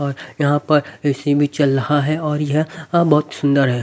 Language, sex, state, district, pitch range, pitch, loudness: Hindi, male, Haryana, Rohtak, 140-155 Hz, 145 Hz, -18 LUFS